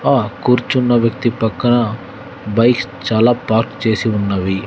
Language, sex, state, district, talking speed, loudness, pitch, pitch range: Telugu, male, Andhra Pradesh, Sri Satya Sai, 115 wpm, -16 LUFS, 115 Hz, 110-125 Hz